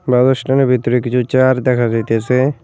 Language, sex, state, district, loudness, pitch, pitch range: Bengali, male, West Bengal, Cooch Behar, -14 LUFS, 125 Hz, 120-130 Hz